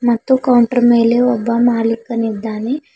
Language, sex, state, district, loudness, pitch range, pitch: Kannada, female, Karnataka, Bidar, -14 LUFS, 230-245 Hz, 235 Hz